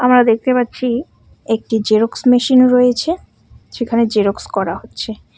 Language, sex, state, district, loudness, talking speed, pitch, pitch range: Bengali, female, West Bengal, Cooch Behar, -15 LUFS, 125 wpm, 240 Hz, 225-250 Hz